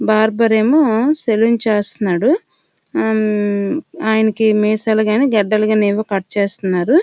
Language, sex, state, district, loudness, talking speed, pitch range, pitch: Telugu, female, Andhra Pradesh, Srikakulam, -15 LUFS, 110 wpm, 210-225 Hz, 215 Hz